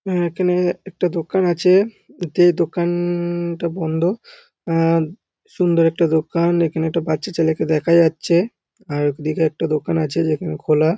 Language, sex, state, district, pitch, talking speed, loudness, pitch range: Bengali, male, West Bengal, North 24 Parganas, 170 Hz, 135 wpm, -19 LUFS, 160-180 Hz